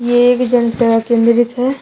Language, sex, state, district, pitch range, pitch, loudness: Hindi, female, Uttar Pradesh, Shamli, 235-245 Hz, 240 Hz, -13 LUFS